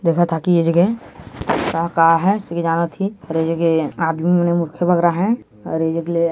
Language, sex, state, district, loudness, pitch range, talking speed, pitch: Hindi, female, Chhattisgarh, Jashpur, -18 LUFS, 165-175 Hz, 230 wpm, 170 Hz